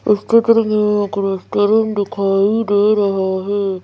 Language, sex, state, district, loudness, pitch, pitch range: Hindi, female, Madhya Pradesh, Bhopal, -16 LUFS, 205 Hz, 195-215 Hz